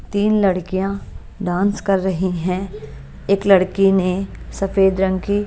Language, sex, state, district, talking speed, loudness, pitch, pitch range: Hindi, female, Bihar, West Champaran, 130 wpm, -18 LUFS, 195 Hz, 185-200 Hz